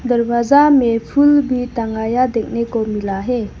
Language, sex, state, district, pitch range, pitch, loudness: Hindi, female, Arunachal Pradesh, Lower Dibang Valley, 225-255 Hz, 235 Hz, -16 LUFS